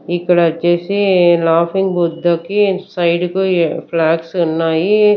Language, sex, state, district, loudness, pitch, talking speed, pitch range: Telugu, female, Andhra Pradesh, Sri Satya Sai, -14 LUFS, 175 Hz, 95 wpm, 165-190 Hz